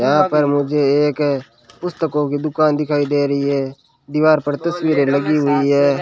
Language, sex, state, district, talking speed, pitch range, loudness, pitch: Hindi, male, Rajasthan, Bikaner, 170 wpm, 140-150 Hz, -17 LUFS, 145 Hz